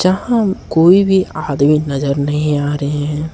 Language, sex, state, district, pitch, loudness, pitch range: Hindi, male, Jharkhand, Ranchi, 150 Hz, -14 LUFS, 145-185 Hz